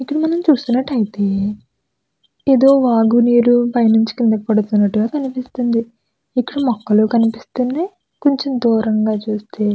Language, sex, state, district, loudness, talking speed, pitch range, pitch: Telugu, female, Andhra Pradesh, Krishna, -16 LUFS, 110 wpm, 220-260 Hz, 235 Hz